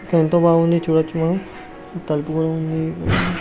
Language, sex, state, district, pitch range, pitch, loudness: Telugu, male, Andhra Pradesh, Srikakulam, 160-170 Hz, 160 Hz, -19 LUFS